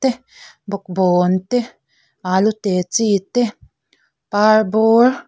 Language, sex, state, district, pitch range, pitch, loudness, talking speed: Mizo, female, Mizoram, Aizawl, 185-230 Hz, 215 Hz, -17 LUFS, 90 wpm